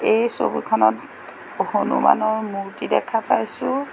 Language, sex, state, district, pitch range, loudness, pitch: Assamese, female, Assam, Sonitpur, 195-230 Hz, -21 LUFS, 220 Hz